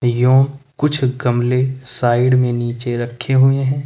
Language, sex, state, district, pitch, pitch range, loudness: Hindi, male, Uttar Pradesh, Lucknow, 125 Hz, 120-135 Hz, -16 LUFS